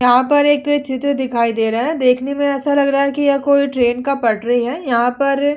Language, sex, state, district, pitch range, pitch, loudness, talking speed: Hindi, female, Uttar Pradesh, Hamirpur, 245-285 Hz, 275 Hz, -16 LUFS, 245 wpm